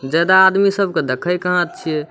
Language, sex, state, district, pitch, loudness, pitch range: Maithili, male, Bihar, Samastipur, 180 Hz, -16 LUFS, 155-190 Hz